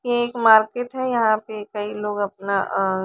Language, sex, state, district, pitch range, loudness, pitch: Hindi, female, Chandigarh, Chandigarh, 205-240 Hz, -21 LUFS, 215 Hz